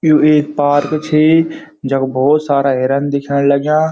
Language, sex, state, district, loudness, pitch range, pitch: Garhwali, male, Uttarakhand, Uttarkashi, -13 LUFS, 140-155 Hz, 145 Hz